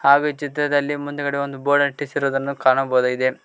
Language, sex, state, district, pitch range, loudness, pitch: Kannada, male, Karnataka, Koppal, 135-145 Hz, -20 LUFS, 140 Hz